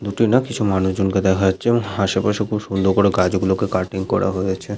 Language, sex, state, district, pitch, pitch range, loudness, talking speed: Bengali, male, West Bengal, Malda, 95 Hz, 95-105 Hz, -19 LUFS, 200 wpm